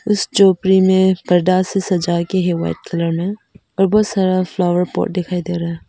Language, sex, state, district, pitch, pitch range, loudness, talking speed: Hindi, female, Arunachal Pradesh, Papum Pare, 185 Hz, 175-190 Hz, -16 LUFS, 205 wpm